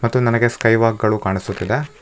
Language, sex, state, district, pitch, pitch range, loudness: Kannada, male, Karnataka, Bangalore, 115 Hz, 110-120 Hz, -18 LUFS